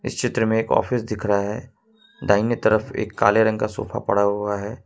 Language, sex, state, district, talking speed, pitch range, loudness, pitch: Hindi, male, Jharkhand, Ranchi, 210 wpm, 105-125 Hz, -21 LUFS, 110 Hz